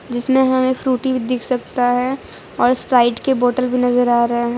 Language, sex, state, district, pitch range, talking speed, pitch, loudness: Hindi, female, Gujarat, Valsad, 245-260 Hz, 210 wpm, 250 Hz, -17 LUFS